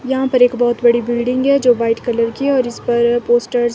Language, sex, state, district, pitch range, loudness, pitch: Hindi, female, Himachal Pradesh, Shimla, 240-255 Hz, -15 LUFS, 240 Hz